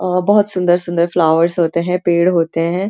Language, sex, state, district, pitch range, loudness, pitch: Hindi, female, Uttarakhand, Uttarkashi, 170-180 Hz, -15 LUFS, 175 Hz